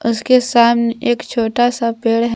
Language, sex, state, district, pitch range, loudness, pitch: Hindi, female, Jharkhand, Garhwa, 230-240 Hz, -15 LUFS, 235 Hz